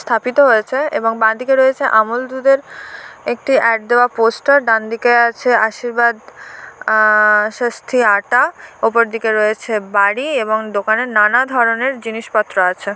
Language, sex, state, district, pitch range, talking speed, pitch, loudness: Bengali, female, West Bengal, Kolkata, 215-250 Hz, 125 wpm, 230 Hz, -14 LUFS